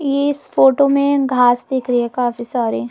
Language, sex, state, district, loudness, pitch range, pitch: Hindi, female, Delhi, New Delhi, -16 LUFS, 245-280 Hz, 255 Hz